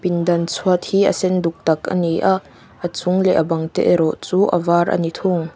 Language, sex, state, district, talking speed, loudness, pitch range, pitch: Mizo, female, Mizoram, Aizawl, 235 wpm, -18 LUFS, 165-185 Hz, 175 Hz